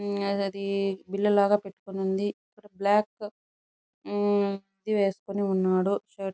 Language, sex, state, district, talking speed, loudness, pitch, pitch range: Telugu, female, Andhra Pradesh, Chittoor, 140 wpm, -27 LUFS, 200 Hz, 195-205 Hz